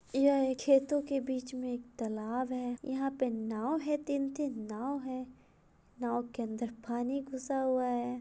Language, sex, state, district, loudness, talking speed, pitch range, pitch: Hindi, female, Bihar, Madhepura, -34 LUFS, 160 wpm, 240-275 Hz, 255 Hz